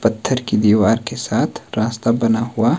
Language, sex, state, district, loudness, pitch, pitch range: Hindi, male, Himachal Pradesh, Shimla, -18 LUFS, 115 Hz, 110-115 Hz